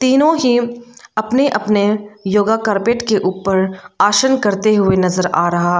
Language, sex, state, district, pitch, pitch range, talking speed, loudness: Hindi, female, Arunachal Pradesh, Lower Dibang Valley, 210 Hz, 190-240 Hz, 155 wpm, -15 LUFS